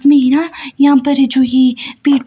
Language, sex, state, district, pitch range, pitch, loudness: Hindi, female, Himachal Pradesh, Shimla, 260-285 Hz, 275 Hz, -12 LUFS